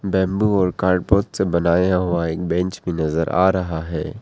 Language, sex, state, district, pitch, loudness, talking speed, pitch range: Hindi, male, Arunachal Pradesh, Papum Pare, 90 Hz, -20 LUFS, 185 wpm, 85-95 Hz